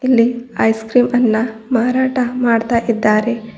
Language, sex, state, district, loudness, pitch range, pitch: Kannada, female, Karnataka, Bidar, -16 LUFS, 225-245 Hz, 235 Hz